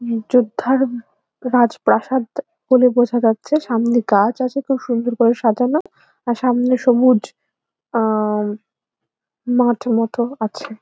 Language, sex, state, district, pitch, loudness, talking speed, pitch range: Bengali, female, West Bengal, Jhargram, 245 Hz, -17 LUFS, 105 wpm, 230-255 Hz